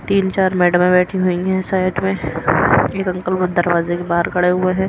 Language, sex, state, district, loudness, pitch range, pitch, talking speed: Hindi, female, Haryana, Rohtak, -17 LUFS, 175-190 Hz, 185 Hz, 195 wpm